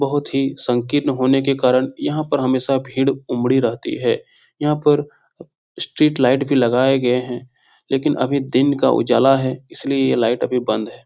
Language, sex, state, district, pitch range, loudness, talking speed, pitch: Hindi, male, Bihar, Jahanabad, 125-145 Hz, -18 LUFS, 180 wpm, 135 Hz